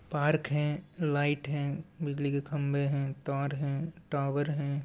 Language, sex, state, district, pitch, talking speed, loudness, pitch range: Hindi, male, Goa, North and South Goa, 145 Hz, 160 wpm, -32 LUFS, 140-150 Hz